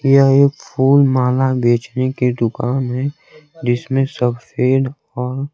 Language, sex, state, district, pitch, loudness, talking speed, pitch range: Hindi, male, Bihar, Kaimur, 130 Hz, -16 LUFS, 120 wpm, 125-140 Hz